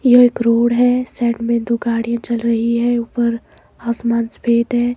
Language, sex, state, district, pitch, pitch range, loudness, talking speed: Hindi, male, Himachal Pradesh, Shimla, 235 Hz, 235-240 Hz, -17 LUFS, 180 wpm